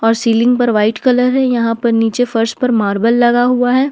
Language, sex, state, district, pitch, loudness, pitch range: Hindi, female, Jharkhand, Ranchi, 240 Hz, -13 LUFS, 225-250 Hz